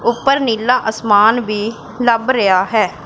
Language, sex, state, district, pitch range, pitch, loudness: Hindi, female, Punjab, Pathankot, 215-245 Hz, 230 Hz, -14 LUFS